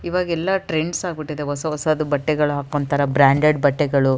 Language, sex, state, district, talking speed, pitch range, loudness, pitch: Kannada, female, Karnataka, Raichur, 130 wpm, 145-160 Hz, -20 LUFS, 150 Hz